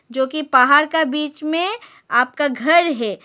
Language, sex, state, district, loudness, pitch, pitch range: Hindi, female, Arunachal Pradesh, Lower Dibang Valley, -17 LUFS, 295 Hz, 260-320 Hz